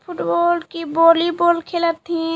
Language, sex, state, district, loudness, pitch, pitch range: Chhattisgarhi, female, Chhattisgarh, Jashpur, -18 LUFS, 335 Hz, 330-345 Hz